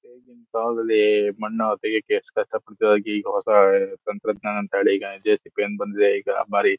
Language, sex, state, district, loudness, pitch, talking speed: Kannada, male, Karnataka, Shimoga, -22 LUFS, 120 Hz, 140 wpm